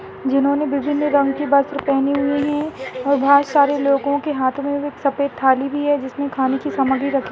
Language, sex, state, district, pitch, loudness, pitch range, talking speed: Hindi, female, Uttar Pradesh, Ghazipur, 280 Hz, -19 LUFS, 275-285 Hz, 205 wpm